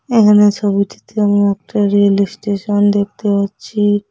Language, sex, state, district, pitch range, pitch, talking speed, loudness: Bengali, female, West Bengal, Cooch Behar, 200-210 Hz, 205 Hz, 115 wpm, -14 LUFS